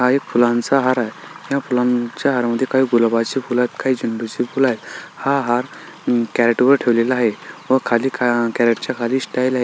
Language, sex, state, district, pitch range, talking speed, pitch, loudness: Marathi, male, Maharashtra, Solapur, 120-130 Hz, 195 wpm, 125 Hz, -18 LUFS